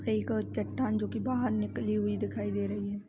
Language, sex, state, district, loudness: Hindi, female, Bihar, Samastipur, -32 LUFS